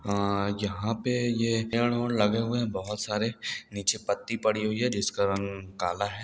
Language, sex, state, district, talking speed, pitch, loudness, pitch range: Hindi, male, Bihar, Muzaffarpur, 190 wpm, 105 Hz, -28 LUFS, 100-115 Hz